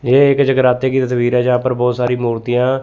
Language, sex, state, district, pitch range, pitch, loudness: Hindi, male, Chandigarh, Chandigarh, 125-130 Hz, 125 Hz, -15 LUFS